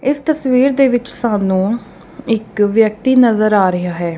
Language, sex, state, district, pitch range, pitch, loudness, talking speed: Punjabi, female, Punjab, Kapurthala, 205-260 Hz, 225 Hz, -14 LUFS, 160 wpm